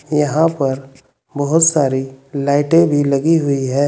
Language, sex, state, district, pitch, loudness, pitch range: Hindi, male, Uttar Pradesh, Saharanpur, 145 Hz, -15 LUFS, 135-150 Hz